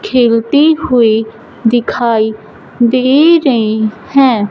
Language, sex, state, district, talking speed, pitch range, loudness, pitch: Hindi, female, Punjab, Fazilka, 80 wpm, 220-270 Hz, -11 LUFS, 240 Hz